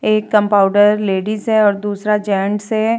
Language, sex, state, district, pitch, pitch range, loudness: Hindi, female, Uttar Pradesh, Jalaun, 210 Hz, 205-215 Hz, -15 LUFS